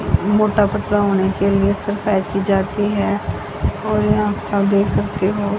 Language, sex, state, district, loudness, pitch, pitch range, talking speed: Hindi, female, Haryana, Rohtak, -18 LUFS, 200 Hz, 195-205 Hz, 170 wpm